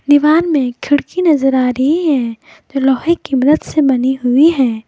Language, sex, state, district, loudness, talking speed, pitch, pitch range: Hindi, female, Jharkhand, Garhwa, -13 LUFS, 185 wpm, 275 Hz, 260-305 Hz